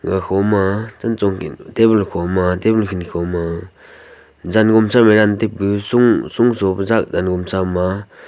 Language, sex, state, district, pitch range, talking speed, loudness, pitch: Wancho, male, Arunachal Pradesh, Longding, 90-110 Hz, 145 wpm, -16 LUFS, 100 Hz